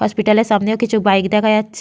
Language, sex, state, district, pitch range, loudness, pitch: Bengali, female, West Bengal, Malda, 210-220 Hz, -15 LUFS, 215 Hz